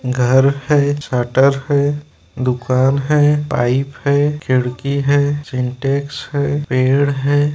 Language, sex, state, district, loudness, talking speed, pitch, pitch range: Hindi, male, Bihar, Gopalganj, -16 LUFS, 110 wpm, 140 Hz, 130-145 Hz